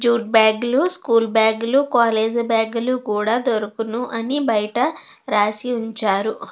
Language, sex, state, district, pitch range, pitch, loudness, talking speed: Telugu, female, Andhra Pradesh, Krishna, 220-245 Hz, 230 Hz, -19 LUFS, 140 wpm